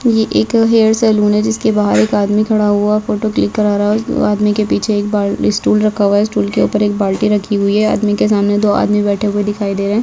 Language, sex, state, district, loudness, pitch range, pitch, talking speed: Hindi, female, Chhattisgarh, Bastar, -13 LUFS, 205-215 Hz, 210 Hz, 265 wpm